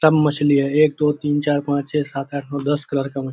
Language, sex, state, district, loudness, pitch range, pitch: Hindi, male, Bihar, Araria, -20 LUFS, 140-150 Hz, 145 Hz